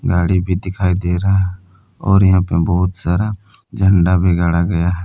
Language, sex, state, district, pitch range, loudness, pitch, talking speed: Hindi, male, Jharkhand, Palamu, 90-95 Hz, -16 LUFS, 90 Hz, 165 wpm